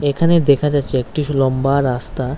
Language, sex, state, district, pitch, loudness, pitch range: Bengali, male, Tripura, West Tripura, 140 Hz, -16 LUFS, 130-145 Hz